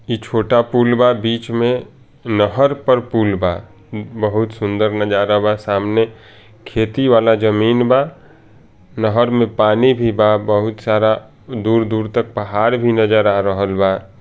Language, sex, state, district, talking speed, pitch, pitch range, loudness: Bhojpuri, male, Bihar, Saran, 145 wpm, 110 Hz, 105-120 Hz, -16 LUFS